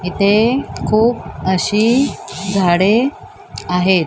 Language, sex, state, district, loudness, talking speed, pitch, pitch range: Marathi, male, Maharashtra, Mumbai Suburban, -15 LUFS, 75 wpm, 200 Hz, 185-230 Hz